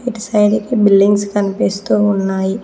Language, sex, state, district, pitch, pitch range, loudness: Telugu, female, Telangana, Mahabubabad, 205 Hz, 195-210 Hz, -14 LUFS